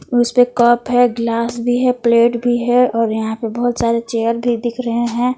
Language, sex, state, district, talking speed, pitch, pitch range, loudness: Hindi, female, Jharkhand, Palamu, 210 wpm, 240 Hz, 230-245 Hz, -16 LUFS